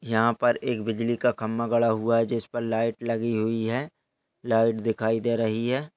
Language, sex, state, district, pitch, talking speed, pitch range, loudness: Hindi, male, Chhattisgarh, Jashpur, 115 Hz, 200 wpm, 115-120 Hz, -25 LUFS